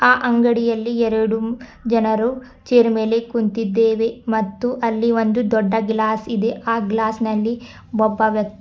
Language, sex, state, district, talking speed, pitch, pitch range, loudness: Kannada, female, Karnataka, Bidar, 125 wpm, 225 Hz, 220-235 Hz, -19 LUFS